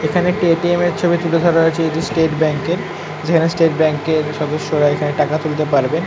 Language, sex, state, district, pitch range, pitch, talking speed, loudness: Bengali, male, West Bengal, North 24 Parganas, 150-170 Hz, 160 Hz, 235 wpm, -16 LUFS